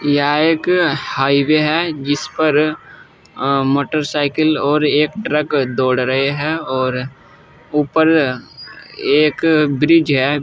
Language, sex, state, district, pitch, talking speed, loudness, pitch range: Hindi, male, Uttar Pradesh, Saharanpur, 150 Hz, 105 wpm, -16 LUFS, 140-155 Hz